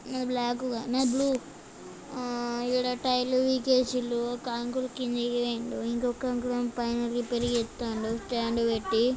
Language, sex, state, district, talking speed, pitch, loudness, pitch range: Telugu, female, Andhra Pradesh, Chittoor, 145 wpm, 245 Hz, -29 LUFS, 235-255 Hz